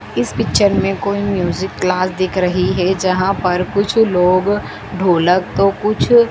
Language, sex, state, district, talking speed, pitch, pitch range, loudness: Hindi, female, Madhya Pradesh, Dhar, 150 wpm, 185 Hz, 180-200 Hz, -15 LUFS